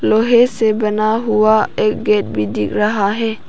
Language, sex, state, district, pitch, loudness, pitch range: Hindi, female, Arunachal Pradesh, Papum Pare, 215 Hz, -15 LUFS, 210-220 Hz